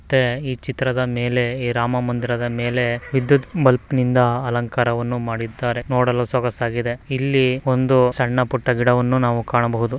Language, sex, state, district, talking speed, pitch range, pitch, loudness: Kannada, male, Karnataka, Mysore, 140 wpm, 120-130 Hz, 125 Hz, -20 LUFS